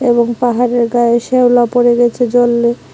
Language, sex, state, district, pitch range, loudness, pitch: Bengali, female, Tripura, West Tripura, 235-245 Hz, -12 LUFS, 240 Hz